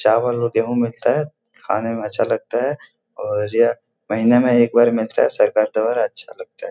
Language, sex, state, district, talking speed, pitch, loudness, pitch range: Hindi, male, Bihar, Jahanabad, 215 wpm, 120 Hz, -18 LUFS, 110-120 Hz